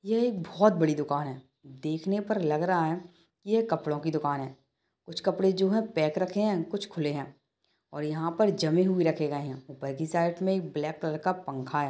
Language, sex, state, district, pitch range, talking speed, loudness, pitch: Hindi, male, Bihar, Kishanganj, 150-190 Hz, 220 wpm, -29 LUFS, 160 Hz